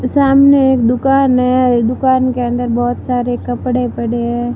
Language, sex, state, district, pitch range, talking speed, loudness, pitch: Hindi, female, Rajasthan, Barmer, 240-260 Hz, 170 wpm, -13 LUFS, 250 Hz